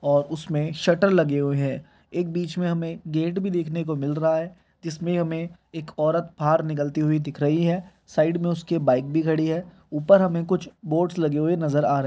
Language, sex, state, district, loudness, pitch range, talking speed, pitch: Hindi, male, Bihar, Begusarai, -24 LUFS, 155-175 Hz, 220 wpm, 165 Hz